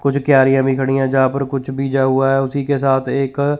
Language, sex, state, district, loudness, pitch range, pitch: Hindi, male, Chandigarh, Chandigarh, -16 LUFS, 135-140 Hz, 135 Hz